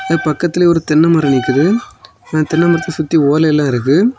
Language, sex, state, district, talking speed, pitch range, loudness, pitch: Tamil, male, Tamil Nadu, Kanyakumari, 170 wpm, 150-170 Hz, -13 LUFS, 160 Hz